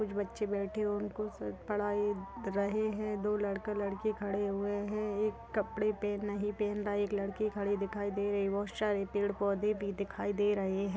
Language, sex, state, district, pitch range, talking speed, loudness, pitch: Hindi, female, Maharashtra, Pune, 200-210 Hz, 185 wpm, -35 LUFS, 205 Hz